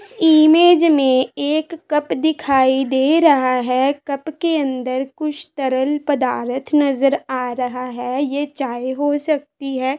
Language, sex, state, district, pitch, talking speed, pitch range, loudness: Hindi, female, Uttar Pradesh, Varanasi, 280 Hz, 140 wpm, 260-305 Hz, -17 LUFS